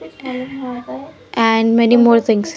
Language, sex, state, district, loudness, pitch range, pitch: English, female, Haryana, Jhajjar, -13 LUFS, 225-250 Hz, 235 Hz